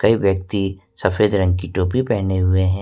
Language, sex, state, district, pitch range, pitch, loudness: Hindi, male, Jharkhand, Ranchi, 95-100 Hz, 95 Hz, -19 LUFS